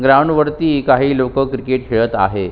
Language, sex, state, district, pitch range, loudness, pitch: Marathi, male, Maharashtra, Sindhudurg, 115-140 Hz, -15 LUFS, 130 Hz